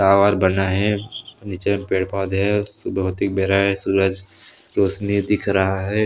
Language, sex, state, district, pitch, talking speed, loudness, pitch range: Chhattisgarhi, male, Chhattisgarh, Sarguja, 100 Hz, 170 wpm, -20 LUFS, 95-100 Hz